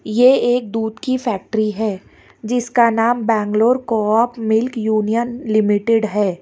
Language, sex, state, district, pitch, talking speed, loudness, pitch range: Hindi, female, Karnataka, Bangalore, 225 Hz, 140 wpm, -17 LUFS, 215-240 Hz